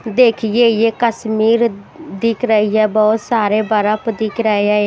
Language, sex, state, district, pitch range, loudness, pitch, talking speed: Hindi, female, Himachal Pradesh, Shimla, 215-230 Hz, -15 LUFS, 220 Hz, 150 wpm